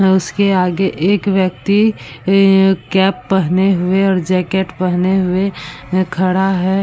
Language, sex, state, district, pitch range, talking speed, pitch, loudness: Hindi, female, Bihar, Vaishali, 185-195 Hz, 130 wpm, 190 Hz, -14 LUFS